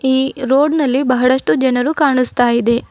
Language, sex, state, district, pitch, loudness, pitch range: Kannada, female, Karnataka, Bidar, 260 Hz, -14 LUFS, 250-270 Hz